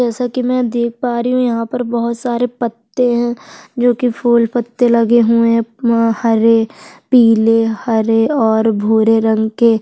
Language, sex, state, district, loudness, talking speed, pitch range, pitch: Hindi, female, Chhattisgarh, Sukma, -14 LUFS, 165 wpm, 225-245 Hz, 235 Hz